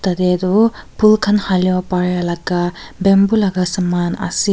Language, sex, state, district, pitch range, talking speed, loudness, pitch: Nagamese, female, Nagaland, Kohima, 180-200 Hz, 145 wpm, -16 LUFS, 185 Hz